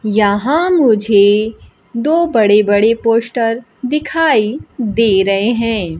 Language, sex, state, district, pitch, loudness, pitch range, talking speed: Hindi, female, Bihar, Kaimur, 225 Hz, -13 LUFS, 210-250 Hz, 100 wpm